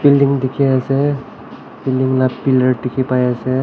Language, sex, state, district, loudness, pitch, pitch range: Nagamese, male, Nagaland, Kohima, -16 LUFS, 130 Hz, 130-140 Hz